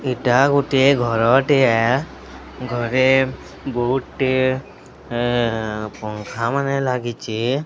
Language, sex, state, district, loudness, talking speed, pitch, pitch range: Odia, male, Odisha, Sambalpur, -19 LUFS, 55 wpm, 130 Hz, 115-135 Hz